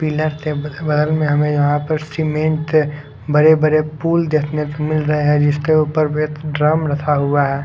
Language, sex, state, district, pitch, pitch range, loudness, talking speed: Hindi, male, Odisha, Khordha, 150 Hz, 150-155 Hz, -17 LUFS, 180 wpm